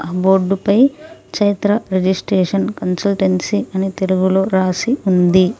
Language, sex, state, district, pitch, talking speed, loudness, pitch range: Telugu, female, Telangana, Mahabubabad, 190 Hz, 120 wpm, -16 LUFS, 185-205 Hz